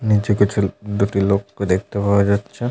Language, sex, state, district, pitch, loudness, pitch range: Bengali, male, West Bengal, Malda, 100 Hz, -19 LUFS, 100-105 Hz